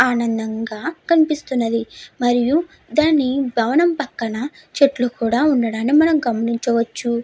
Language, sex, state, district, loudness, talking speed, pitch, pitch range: Telugu, female, Andhra Pradesh, Chittoor, -19 LUFS, 90 wpm, 245 Hz, 230-300 Hz